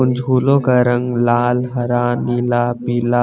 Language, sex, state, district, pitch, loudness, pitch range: Hindi, male, Chandigarh, Chandigarh, 120 Hz, -16 LUFS, 120-125 Hz